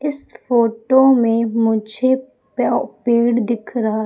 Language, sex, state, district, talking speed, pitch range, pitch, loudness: Hindi, female, Madhya Pradesh, Umaria, 105 wpm, 225-260 Hz, 235 Hz, -17 LUFS